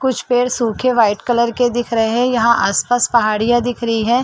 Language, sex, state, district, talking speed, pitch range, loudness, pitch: Hindi, female, Chhattisgarh, Rajnandgaon, 210 wpm, 230-245 Hz, -16 LUFS, 240 Hz